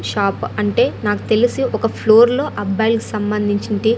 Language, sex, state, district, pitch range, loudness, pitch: Telugu, female, Andhra Pradesh, Annamaya, 205-225 Hz, -17 LUFS, 220 Hz